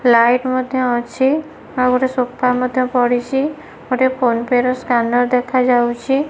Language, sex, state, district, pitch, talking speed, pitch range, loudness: Odia, female, Odisha, Nuapada, 250 Hz, 145 wpm, 245-260 Hz, -16 LUFS